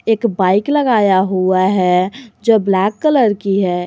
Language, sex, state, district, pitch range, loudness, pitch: Hindi, female, Jharkhand, Garhwa, 185-230 Hz, -14 LUFS, 200 Hz